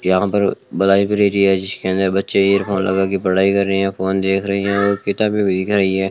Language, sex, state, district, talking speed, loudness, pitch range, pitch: Hindi, male, Rajasthan, Bikaner, 205 wpm, -17 LUFS, 95-100 Hz, 95 Hz